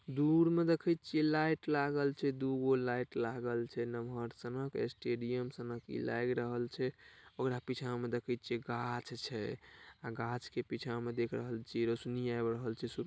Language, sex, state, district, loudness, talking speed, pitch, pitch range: Maithili, male, Bihar, Saharsa, -37 LUFS, 155 wpm, 120 Hz, 120-135 Hz